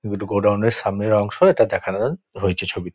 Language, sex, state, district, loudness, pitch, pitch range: Bengali, male, West Bengal, Dakshin Dinajpur, -20 LUFS, 100 Hz, 95-105 Hz